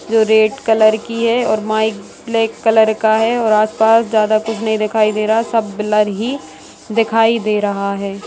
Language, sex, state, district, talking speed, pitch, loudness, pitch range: Hindi, female, Bihar, Saran, 195 wpm, 220 Hz, -15 LUFS, 215-225 Hz